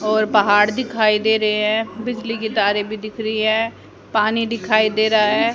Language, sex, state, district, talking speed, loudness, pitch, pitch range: Hindi, female, Haryana, Rohtak, 195 wpm, -18 LUFS, 215 Hz, 215-225 Hz